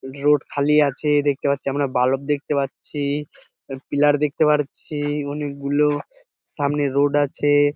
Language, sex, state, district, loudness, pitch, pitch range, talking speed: Bengali, male, West Bengal, Dakshin Dinajpur, -21 LUFS, 145 Hz, 140-145 Hz, 130 wpm